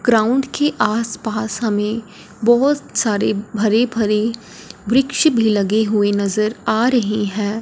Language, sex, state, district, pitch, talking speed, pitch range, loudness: Hindi, female, Punjab, Fazilka, 220 Hz, 135 wpm, 210-240 Hz, -18 LUFS